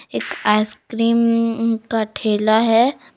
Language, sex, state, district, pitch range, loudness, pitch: Hindi, female, Jharkhand, Palamu, 215-230 Hz, -18 LUFS, 225 Hz